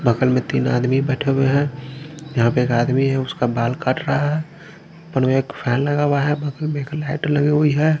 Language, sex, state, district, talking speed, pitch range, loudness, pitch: Hindi, male, Haryana, Charkhi Dadri, 220 wpm, 130-150 Hz, -19 LUFS, 140 Hz